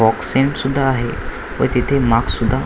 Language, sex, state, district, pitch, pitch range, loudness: Marathi, male, Maharashtra, Washim, 125 Hz, 115-135 Hz, -17 LUFS